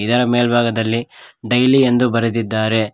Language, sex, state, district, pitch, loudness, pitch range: Kannada, male, Karnataka, Koppal, 120 Hz, -16 LUFS, 115-125 Hz